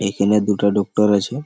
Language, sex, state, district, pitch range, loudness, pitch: Bengali, male, West Bengal, Malda, 100-105 Hz, -17 LUFS, 100 Hz